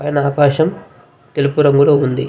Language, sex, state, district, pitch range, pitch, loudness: Telugu, male, Andhra Pradesh, Visakhapatnam, 140-145 Hz, 145 Hz, -14 LUFS